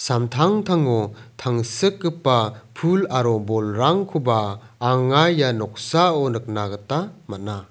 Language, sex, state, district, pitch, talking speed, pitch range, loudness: Garo, male, Meghalaya, South Garo Hills, 125 Hz, 85 wpm, 110-165 Hz, -21 LUFS